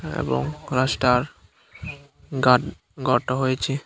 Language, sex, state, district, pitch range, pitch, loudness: Bengali, male, Tripura, Unakoti, 125-140 Hz, 130 Hz, -22 LUFS